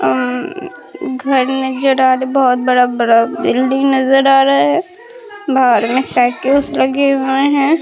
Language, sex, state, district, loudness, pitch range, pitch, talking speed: Hindi, female, Bihar, Katihar, -13 LUFS, 250-275 Hz, 265 Hz, 140 wpm